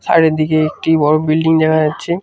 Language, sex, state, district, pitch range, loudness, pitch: Bengali, male, West Bengal, Cooch Behar, 155-160 Hz, -14 LUFS, 155 Hz